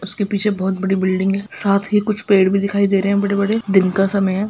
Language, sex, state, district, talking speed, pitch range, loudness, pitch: Hindi, female, Bihar, Saharsa, 280 wpm, 195-200 Hz, -16 LUFS, 200 Hz